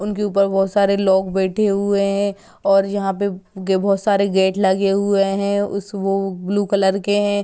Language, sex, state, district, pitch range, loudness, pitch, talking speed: Hindi, female, Uttar Pradesh, Gorakhpur, 195-200 Hz, -18 LUFS, 200 Hz, 195 wpm